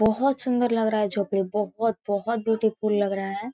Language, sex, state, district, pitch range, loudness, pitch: Hindi, female, Chhattisgarh, Korba, 205-230 Hz, -25 LUFS, 220 Hz